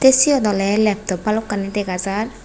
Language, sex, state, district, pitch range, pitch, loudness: Chakma, female, Tripura, West Tripura, 200-220 Hz, 210 Hz, -18 LUFS